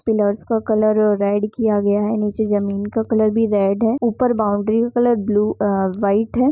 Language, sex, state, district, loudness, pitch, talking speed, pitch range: Hindi, female, Jharkhand, Jamtara, -18 LUFS, 215 Hz, 185 wpm, 205-225 Hz